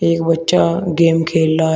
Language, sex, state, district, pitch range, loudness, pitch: Hindi, male, Uttar Pradesh, Shamli, 160-170 Hz, -15 LUFS, 165 Hz